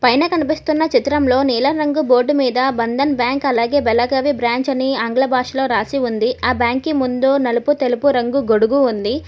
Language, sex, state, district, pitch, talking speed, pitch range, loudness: Telugu, female, Telangana, Hyderabad, 260 Hz, 160 wpm, 245-280 Hz, -16 LUFS